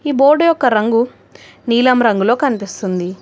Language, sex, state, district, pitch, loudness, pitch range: Telugu, female, Telangana, Hyderabad, 235 Hz, -14 LUFS, 210-275 Hz